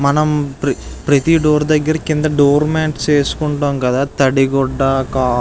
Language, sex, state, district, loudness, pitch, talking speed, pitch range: Telugu, male, Andhra Pradesh, Visakhapatnam, -15 LUFS, 145 Hz, 120 wpm, 135-150 Hz